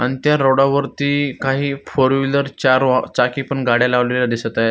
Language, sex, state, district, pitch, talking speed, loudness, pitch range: Marathi, male, Maharashtra, Solapur, 135 Hz, 180 wpm, -17 LUFS, 125-140 Hz